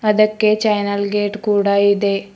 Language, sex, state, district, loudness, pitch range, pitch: Kannada, female, Karnataka, Bidar, -16 LUFS, 200-215 Hz, 205 Hz